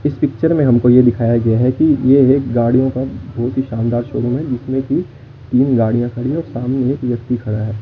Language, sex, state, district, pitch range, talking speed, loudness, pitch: Hindi, male, Chandigarh, Chandigarh, 120-135 Hz, 230 wpm, -15 LUFS, 125 Hz